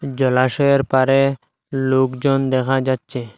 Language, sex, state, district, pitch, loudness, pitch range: Bengali, male, Assam, Hailakandi, 135 Hz, -18 LUFS, 130-135 Hz